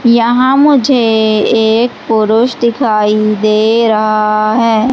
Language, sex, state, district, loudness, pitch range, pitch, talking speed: Hindi, female, Madhya Pradesh, Umaria, -10 LUFS, 215-240 Hz, 225 Hz, 95 wpm